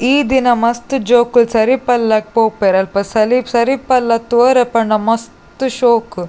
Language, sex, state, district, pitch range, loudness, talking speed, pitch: Tulu, female, Karnataka, Dakshina Kannada, 225-250 Hz, -13 LUFS, 125 wpm, 235 Hz